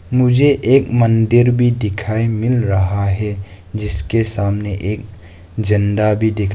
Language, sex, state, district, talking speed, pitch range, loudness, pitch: Hindi, male, Arunachal Pradesh, Lower Dibang Valley, 130 wpm, 100-115 Hz, -16 LUFS, 105 Hz